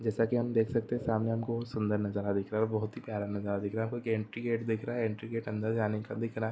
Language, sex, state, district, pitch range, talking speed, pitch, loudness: Hindi, male, Chhattisgarh, Rajnandgaon, 105-115 Hz, 285 wpm, 110 Hz, -33 LUFS